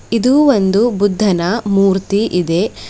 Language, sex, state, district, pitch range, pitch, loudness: Kannada, female, Karnataka, Bidar, 185-225 Hz, 200 Hz, -14 LUFS